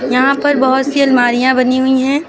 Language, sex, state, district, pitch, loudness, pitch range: Hindi, female, Uttar Pradesh, Lucknow, 260 Hz, -12 LUFS, 255-275 Hz